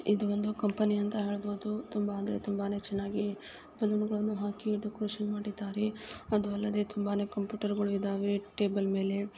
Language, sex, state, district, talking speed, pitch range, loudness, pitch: Kannada, female, Karnataka, Chamarajanagar, 135 wpm, 205-210 Hz, -33 LUFS, 205 Hz